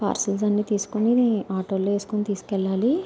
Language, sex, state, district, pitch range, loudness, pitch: Telugu, female, Andhra Pradesh, Anantapur, 200-215 Hz, -24 LUFS, 205 Hz